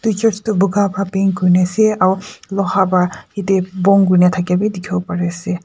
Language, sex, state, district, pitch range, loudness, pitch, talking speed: Nagamese, female, Nagaland, Kohima, 180-200 Hz, -16 LUFS, 190 Hz, 210 wpm